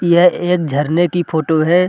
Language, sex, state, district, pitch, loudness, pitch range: Hindi, male, Bihar, Gaya, 175 Hz, -15 LUFS, 160-175 Hz